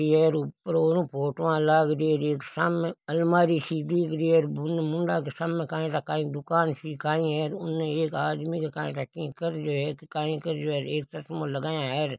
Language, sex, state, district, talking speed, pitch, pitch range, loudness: Marwari, male, Rajasthan, Nagaur, 215 wpm, 155 Hz, 150-165 Hz, -27 LUFS